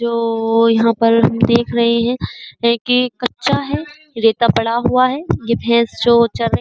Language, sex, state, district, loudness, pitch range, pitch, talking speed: Hindi, female, Uttar Pradesh, Jyotiba Phule Nagar, -15 LUFS, 230-245 Hz, 235 Hz, 190 wpm